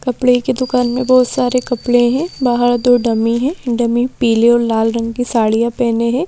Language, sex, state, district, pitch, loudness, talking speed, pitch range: Hindi, female, Madhya Pradesh, Bhopal, 245 Hz, -14 LUFS, 200 wpm, 235-250 Hz